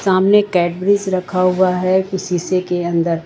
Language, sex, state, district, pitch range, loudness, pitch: Hindi, female, Jharkhand, Ranchi, 175-190 Hz, -16 LUFS, 185 Hz